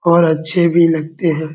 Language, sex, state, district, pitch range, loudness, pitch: Hindi, male, Bihar, Darbhanga, 160-170 Hz, -14 LUFS, 165 Hz